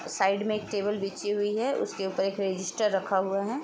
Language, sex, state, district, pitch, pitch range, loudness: Hindi, female, Uttar Pradesh, Etah, 200 Hz, 195-210 Hz, -29 LUFS